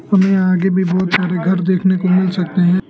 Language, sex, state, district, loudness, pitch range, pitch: Hindi, male, Arunachal Pradesh, Lower Dibang Valley, -15 LUFS, 180-185 Hz, 185 Hz